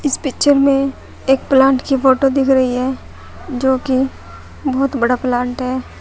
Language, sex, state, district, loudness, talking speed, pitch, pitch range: Hindi, female, Uttar Pradesh, Shamli, -16 LUFS, 150 wpm, 265 Hz, 255-275 Hz